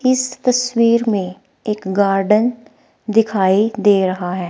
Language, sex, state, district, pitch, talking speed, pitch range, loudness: Hindi, female, Himachal Pradesh, Shimla, 210 Hz, 120 wpm, 195-235 Hz, -16 LUFS